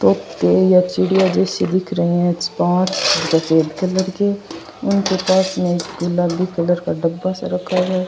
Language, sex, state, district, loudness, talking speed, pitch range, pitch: Rajasthani, female, Rajasthan, Churu, -17 LUFS, 135 wpm, 170-185 Hz, 180 Hz